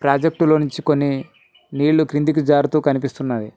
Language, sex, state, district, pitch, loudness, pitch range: Telugu, male, Telangana, Mahabubabad, 145 Hz, -18 LUFS, 140-155 Hz